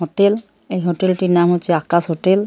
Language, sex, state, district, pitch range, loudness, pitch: Bengali, female, West Bengal, Purulia, 170-190 Hz, -17 LUFS, 175 Hz